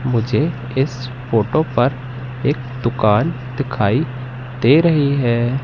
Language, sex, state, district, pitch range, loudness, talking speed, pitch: Hindi, male, Madhya Pradesh, Katni, 120-140 Hz, -18 LUFS, 105 wpm, 125 Hz